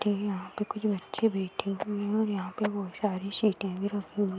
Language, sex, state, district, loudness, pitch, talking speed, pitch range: Hindi, female, Uttar Pradesh, Hamirpur, -31 LUFS, 205 Hz, 245 wpm, 195-210 Hz